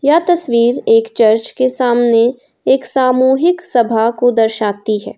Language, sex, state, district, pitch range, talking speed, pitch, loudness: Hindi, female, Jharkhand, Ranchi, 225-260 Hz, 140 wpm, 240 Hz, -13 LUFS